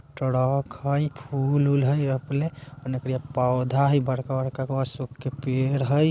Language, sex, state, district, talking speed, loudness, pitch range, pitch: Bajjika, male, Bihar, Vaishali, 135 wpm, -25 LUFS, 130-140 Hz, 135 Hz